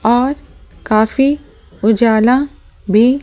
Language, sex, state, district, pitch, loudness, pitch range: Hindi, female, Delhi, New Delhi, 235 Hz, -14 LUFS, 220-270 Hz